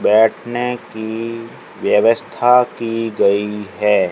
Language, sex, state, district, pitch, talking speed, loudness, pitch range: Hindi, male, Rajasthan, Barmer, 115 Hz, 85 wpm, -17 LUFS, 105-120 Hz